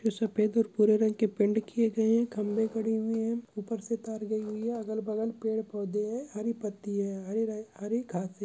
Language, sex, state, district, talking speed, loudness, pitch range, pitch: Hindi, male, Chhattisgarh, Kabirdham, 220 wpm, -31 LUFS, 210-225 Hz, 220 Hz